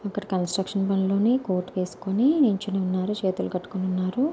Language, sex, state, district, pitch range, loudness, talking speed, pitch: Telugu, female, Andhra Pradesh, Anantapur, 185-205 Hz, -25 LUFS, 140 wpm, 195 Hz